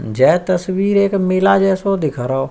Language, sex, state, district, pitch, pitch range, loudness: Hindi, male, Uttar Pradesh, Budaun, 185 Hz, 150-195 Hz, -15 LUFS